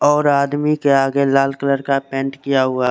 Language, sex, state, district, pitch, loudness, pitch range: Hindi, male, Chandigarh, Chandigarh, 140 Hz, -17 LUFS, 135-140 Hz